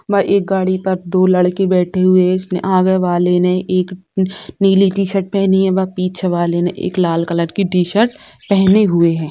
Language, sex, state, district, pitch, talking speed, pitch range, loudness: Hindi, female, Bihar, Sitamarhi, 185 Hz, 180 wpm, 180-195 Hz, -15 LUFS